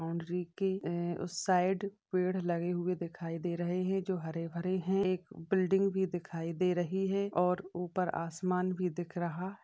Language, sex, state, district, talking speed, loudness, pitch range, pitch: Hindi, female, Uttar Pradesh, Jyotiba Phule Nagar, 180 wpm, -34 LUFS, 175-190 Hz, 180 Hz